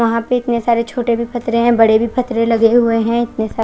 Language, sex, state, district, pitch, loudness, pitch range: Hindi, female, Odisha, Khordha, 235 Hz, -15 LUFS, 230-240 Hz